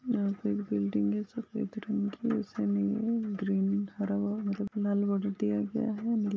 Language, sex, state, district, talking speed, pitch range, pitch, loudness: Hindi, female, Maharashtra, Aurangabad, 190 wpm, 195-220 Hz, 205 Hz, -32 LUFS